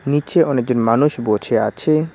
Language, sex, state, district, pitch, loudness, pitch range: Bengali, male, West Bengal, Cooch Behar, 140 Hz, -17 LUFS, 120-155 Hz